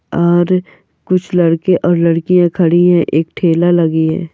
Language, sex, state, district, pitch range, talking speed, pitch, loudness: Hindi, female, Andhra Pradesh, Anantapur, 165-180 Hz, 150 wpm, 175 Hz, -13 LUFS